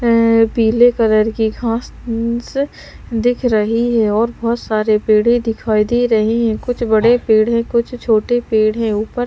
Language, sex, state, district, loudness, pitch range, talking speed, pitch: Hindi, female, Bihar, Patna, -15 LUFS, 220-240 Hz, 155 wpm, 230 Hz